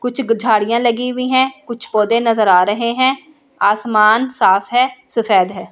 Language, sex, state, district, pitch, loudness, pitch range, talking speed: Hindi, female, Delhi, New Delhi, 235 Hz, -15 LUFS, 215-255 Hz, 180 wpm